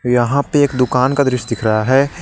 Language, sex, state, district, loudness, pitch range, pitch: Hindi, male, Jharkhand, Garhwa, -15 LUFS, 120-140 Hz, 130 Hz